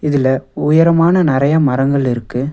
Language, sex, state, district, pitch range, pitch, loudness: Tamil, male, Tamil Nadu, Nilgiris, 130-155 Hz, 140 Hz, -14 LUFS